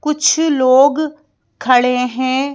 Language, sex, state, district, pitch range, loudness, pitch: Hindi, female, Madhya Pradesh, Bhopal, 255-300 Hz, -14 LUFS, 275 Hz